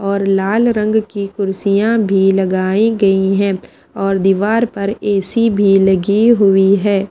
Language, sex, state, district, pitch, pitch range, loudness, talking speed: Hindi, female, Bihar, Patna, 200 Hz, 195-210 Hz, -14 LUFS, 145 wpm